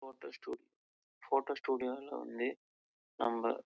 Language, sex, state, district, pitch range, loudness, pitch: Tamil, male, Karnataka, Chamarajanagar, 115-135 Hz, -39 LUFS, 130 Hz